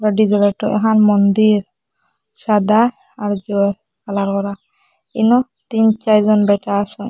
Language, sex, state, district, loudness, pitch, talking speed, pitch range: Bengali, male, Assam, Hailakandi, -16 LUFS, 210 Hz, 85 wpm, 205-225 Hz